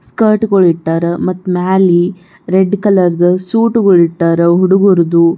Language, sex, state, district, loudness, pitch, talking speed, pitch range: Kannada, female, Karnataka, Bijapur, -11 LUFS, 180 Hz, 110 wpm, 170-195 Hz